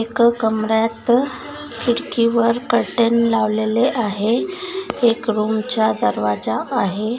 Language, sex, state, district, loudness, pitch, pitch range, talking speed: Marathi, female, Maharashtra, Nagpur, -18 LUFS, 230 Hz, 220-235 Hz, 90 wpm